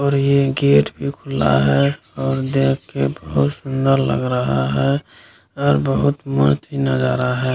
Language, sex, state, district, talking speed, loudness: Hindi, male, Bihar, Kishanganj, 150 wpm, -18 LUFS